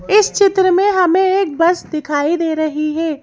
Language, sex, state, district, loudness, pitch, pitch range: Hindi, female, Madhya Pradesh, Bhopal, -15 LUFS, 340 Hz, 310-380 Hz